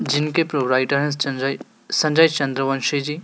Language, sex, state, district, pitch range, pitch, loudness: Hindi, male, Madhya Pradesh, Dhar, 135-150 Hz, 140 Hz, -20 LUFS